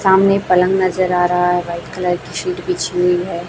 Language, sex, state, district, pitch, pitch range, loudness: Hindi, female, Chhattisgarh, Raipur, 180 Hz, 180-190 Hz, -16 LUFS